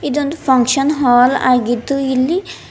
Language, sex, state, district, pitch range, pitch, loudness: Kannada, female, Karnataka, Bidar, 250-285 Hz, 270 Hz, -14 LUFS